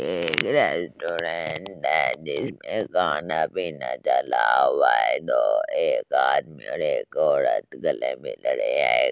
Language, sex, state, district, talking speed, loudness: Hindi, female, Delhi, New Delhi, 125 wpm, -23 LUFS